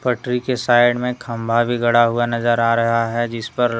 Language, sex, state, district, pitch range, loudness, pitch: Hindi, male, Jharkhand, Deoghar, 115-120 Hz, -18 LUFS, 120 Hz